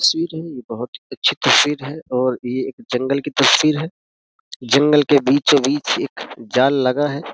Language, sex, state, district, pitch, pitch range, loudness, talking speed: Hindi, male, Uttar Pradesh, Jyotiba Phule Nagar, 140 Hz, 130-150 Hz, -17 LUFS, 190 wpm